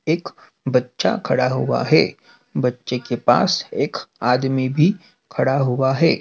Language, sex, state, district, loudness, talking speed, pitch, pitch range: Hindi, male, Madhya Pradesh, Dhar, -20 LUFS, 135 wpm, 130 Hz, 125-150 Hz